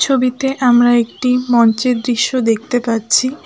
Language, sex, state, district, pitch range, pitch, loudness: Bengali, female, West Bengal, Alipurduar, 235-255 Hz, 245 Hz, -14 LUFS